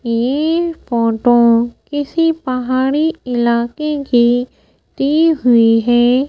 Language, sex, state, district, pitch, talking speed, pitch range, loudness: Hindi, female, Madhya Pradesh, Bhopal, 255 Hz, 85 wpm, 235-300 Hz, -14 LUFS